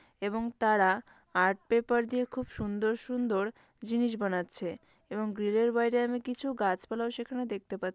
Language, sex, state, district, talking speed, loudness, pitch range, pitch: Bengali, female, West Bengal, Dakshin Dinajpur, 145 wpm, -31 LUFS, 205-240 Hz, 225 Hz